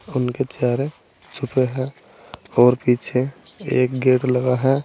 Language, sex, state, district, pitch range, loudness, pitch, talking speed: Hindi, male, Uttar Pradesh, Saharanpur, 125-135 Hz, -20 LUFS, 130 Hz, 125 wpm